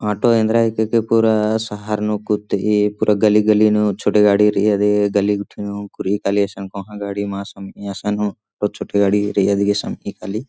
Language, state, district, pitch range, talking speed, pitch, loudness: Kurukh, Chhattisgarh, Jashpur, 100-105 Hz, 205 wpm, 105 Hz, -18 LUFS